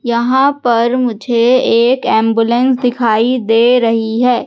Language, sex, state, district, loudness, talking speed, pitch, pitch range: Hindi, female, Madhya Pradesh, Katni, -12 LUFS, 120 wpm, 240 Hz, 230-250 Hz